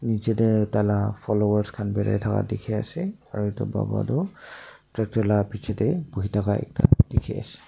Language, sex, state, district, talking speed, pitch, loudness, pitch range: Nagamese, male, Nagaland, Dimapur, 180 wpm, 110 Hz, -24 LUFS, 105-125 Hz